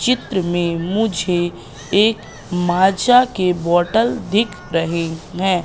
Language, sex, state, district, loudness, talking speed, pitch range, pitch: Hindi, female, Madhya Pradesh, Katni, -18 LUFS, 105 wpm, 175-220 Hz, 185 Hz